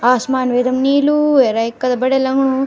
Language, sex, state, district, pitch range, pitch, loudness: Garhwali, male, Uttarakhand, Tehri Garhwal, 250-270 Hz, 260 Hz, -15 LUFS